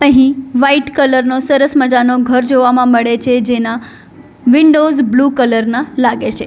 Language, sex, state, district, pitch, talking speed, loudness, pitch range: Gujarati, female, Gujarat, Valsad, 255 Hz, 155 wpm, -11 LUFS, 245-275 Hz